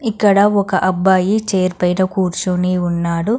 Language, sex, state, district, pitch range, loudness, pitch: Telugu, female, Andhra Pradesh, Guntur, 180-200 Hz, -16 LUFS, 185 Hz